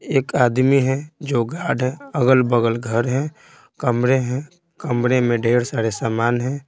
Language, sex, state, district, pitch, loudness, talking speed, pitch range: Hindi, male, Bihar, Patna, 125 Hz, -19 LUFS, 155 wpm, 120-135 Hz